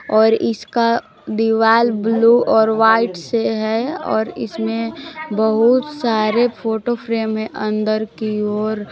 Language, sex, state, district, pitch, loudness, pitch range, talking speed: Hindi, female, Jharkhand, Palamu, 225 Hz, -17 LUFS, 220-235 Hz, 120 wpm